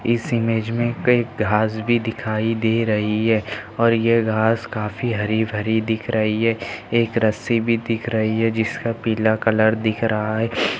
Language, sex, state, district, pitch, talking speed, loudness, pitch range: Hindi, male, Maharashtra, Dhule, 110 Hz, 170 wpm, -20 LUFS, 110-115 Hz